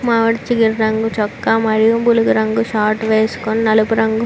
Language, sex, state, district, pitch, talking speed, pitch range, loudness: Telugu, female, Andhra Pradesh, Chittoor, 220 Hz, 170 wpm, 220-230 Hz, -15 LUFS